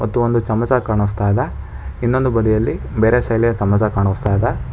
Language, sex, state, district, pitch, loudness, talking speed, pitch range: Kannada, male, Karnataka, Bangalore, 110 Hz, -17 LUFS, 150 wpm, 100-120 Hz